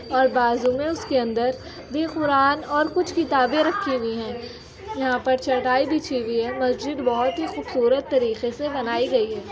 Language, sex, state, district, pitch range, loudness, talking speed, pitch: Hindi, female, Uttar Pradesh, Jyotiba Phule Nagar, 245-300 Hz, -22 LUFS, 170 wpm, 260 Hz